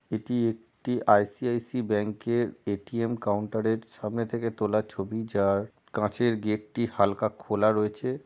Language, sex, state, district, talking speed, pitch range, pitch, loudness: Bengali, male, West Bengal, Jalpaiguri, 140 wpm, 105-120 Hz, 110 Hz, -28 LUFS